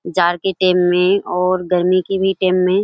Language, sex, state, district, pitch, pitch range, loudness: Hindi, female, Bihar, Kishanganj, 185 Hz, 180-190 Hz, -16 LUFS